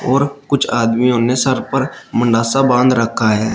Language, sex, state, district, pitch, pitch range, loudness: Hindi, male, Uttar Pradesh, Shamli, 125 Hz, 115-135 Hz, -15 LUFS